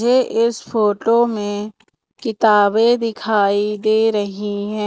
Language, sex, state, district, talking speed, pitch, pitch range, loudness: Hindi, female, Madhya Pradesh, Umaria, 110 wpm, 215 Hz, 205-230 Hz, -17 LUFS